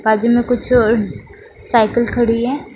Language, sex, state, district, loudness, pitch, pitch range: Hindi, female, Bihar, West Champaran, -15 LUFS, 235 Hz, 230-245 Hz